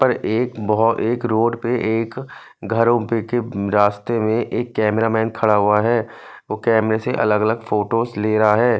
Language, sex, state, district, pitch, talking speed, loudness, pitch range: Hindi, male, Punjab, Fazilka, 115 Hz, 165 wpm, -19 LUFS, 110-120 Hz